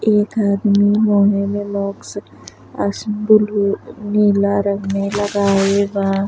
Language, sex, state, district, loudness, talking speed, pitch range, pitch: Bhojpuri, female, Uttar Pradesh, Deoria, -17 LUFS, 55 wpm, 200-210 Hz, 200 Hz